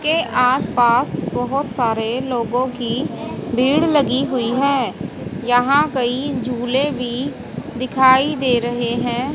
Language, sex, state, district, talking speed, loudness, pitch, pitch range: Hindi, female, Haryana, Charkhi Dadri, 120 wpm, -18 LUFS, 250 Hz, 240-270 Hz